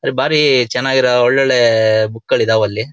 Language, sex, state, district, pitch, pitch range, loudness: Kannada, male, Karnataka, Shimoga, 120 Hz, 110-130 Hz, -13 LUFS